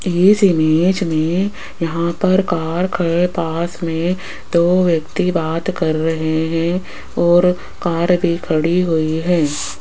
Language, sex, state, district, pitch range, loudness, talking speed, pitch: Hindi, female, Rajasthan, Jaipur, 165-180 Hz, -17 LUFS, 130 wpm, 170 Hz